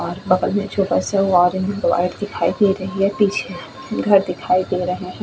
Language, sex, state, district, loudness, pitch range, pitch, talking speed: Hindi, female, Goa, North and South Goa, -19 LUFS, 180-200 Hz, 185 Hz, 170 wpm